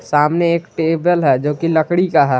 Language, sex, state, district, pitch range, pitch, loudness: Hindi, male, Jharkhand, Garhwa, 150-170 Hz, 165 Hz, -16 LUFS